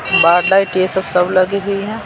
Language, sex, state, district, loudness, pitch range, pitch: Hindi, male, Bihar, Patna, -14 LUFS, 185-200 Hz, 190 Hz